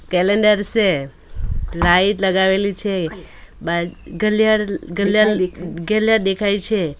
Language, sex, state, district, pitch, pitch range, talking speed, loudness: Gujarati, female, Gujarat, Valsad, 190 Hz, 175-210 Hz, 95 wpm, -17 LUFS